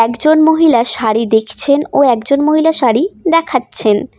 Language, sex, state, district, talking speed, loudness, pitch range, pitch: Bengali, female, West Bengal, Cooch Behar, 130 wpm, -12 LUFS, 225-310 Hz, 270 Hz